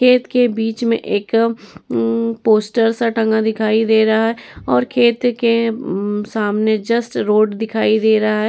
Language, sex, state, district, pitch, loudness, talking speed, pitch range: Hindi, female, Bihar, Vaishali, 220 Hz, -16 LUFS, 175 wpm, 215-230 Hz